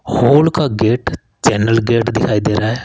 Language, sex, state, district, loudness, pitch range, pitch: Hindi, male, Rajasthan, Jaipur, -14 LUFS, 105-120 Hz, 115 Hz